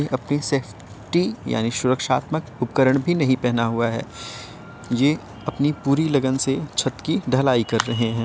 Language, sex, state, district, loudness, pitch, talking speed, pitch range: Hindi, male, Uttar Pradesh, Varanasi, -22 LUFS, 130 Hz, 160 wpm, 115-140 Hz